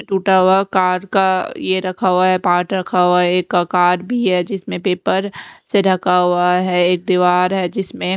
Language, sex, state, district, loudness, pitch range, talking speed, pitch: Hindi, female, Odisha, Nuapada, -16 LUFS, 180-190 Hz, 200 wpm, 185 Hz